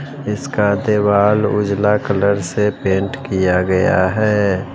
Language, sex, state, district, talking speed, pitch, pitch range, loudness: Hindi, male, Bihar, West Champaran, 115 wpm, 105 Hz, 95-105 Hz, -16 LUFS